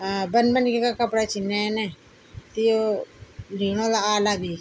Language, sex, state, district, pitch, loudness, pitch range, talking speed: Garhwali, female, Uttarakhand, Tehri Garhwal, 210 Hz, -23 LUFS, 195-225 Hz, 170 wpm